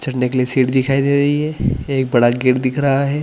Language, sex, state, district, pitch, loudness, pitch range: Hindi, male, Chhattisgarh, Bilaspur, 130 Hz, -16 LUFS, 130-140 Hz